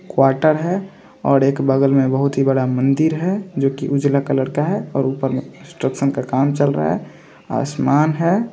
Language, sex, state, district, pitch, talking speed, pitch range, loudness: Hindi, male, Bihar, Samastipur, 140 Hz, 190 wpm, 135-160 Hz, -18 LUFS